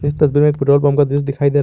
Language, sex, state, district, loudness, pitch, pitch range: Hindi, male, Jharkhand, Garhwa, -15 LUFS, 145 Hz, 140-145 Hz